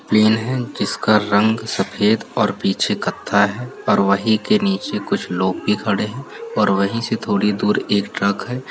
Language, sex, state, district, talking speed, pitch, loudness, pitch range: Hindi, male, Uttar Pradesh, Varanasi, 185 wpm, 105 Hz, -19 LUFS, 100-120 Hz